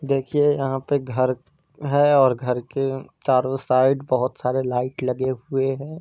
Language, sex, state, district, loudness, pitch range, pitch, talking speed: Hindi, male, Bihar, East Champaran, -22 LUFS, 130-140 Hz, 135 Hz, 160 wpm